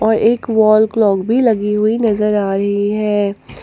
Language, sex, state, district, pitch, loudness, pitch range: Hindi, female, Jharkhand, Palamu, 215 Hz, -14 LUFS, 205-220 Hz